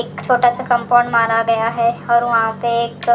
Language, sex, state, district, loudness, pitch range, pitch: Hindi, female, Delhi, New Delhi, -16 LUFS, 230-240 Hz, 235 Hz